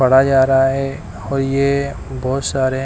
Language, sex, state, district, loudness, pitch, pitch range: Hindi, male, Himachal Pradesh, Shimla, -17 LUFS, 135 Hz, 130-135 Hz